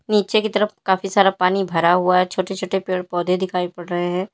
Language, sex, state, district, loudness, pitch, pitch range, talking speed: Hindi, female, Uttar Pradesh, Lalitpur, -19 LUFS, 185 Hz, 180-195 Hz, 235 wpm